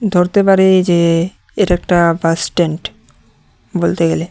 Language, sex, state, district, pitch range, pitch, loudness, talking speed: Bengali, male, Tripura, West Tripura, 165-185 Hz, 175 Hz, -14 LUFS, 140 wpm